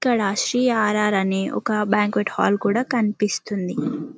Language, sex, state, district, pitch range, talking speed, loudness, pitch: Telugu, female, Telangana, Karimnagar, 205-240 Hz, 145 wpm, -21 LUFS, 210 Hz